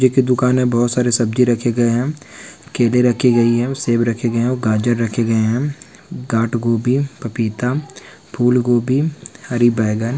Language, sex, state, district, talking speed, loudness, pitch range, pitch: Hindi, male, Uttarakhand, Uttarkashi, 190 wpm, -17 LUFS, 115-125 Hz, 120 Hz